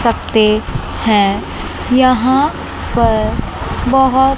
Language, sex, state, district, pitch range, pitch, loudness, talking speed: Hindi, female, Chandigarh, Chandigarh, 215-265 Hz, 255 Hz, -14 LUFS, 70 wpm